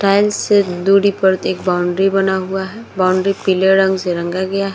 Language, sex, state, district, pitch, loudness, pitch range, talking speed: Hindi, female, Uttar Pradesh, Muzaffarnagar, 190 Hz, -15 LUFS, 185-195 Hz, 150 wpm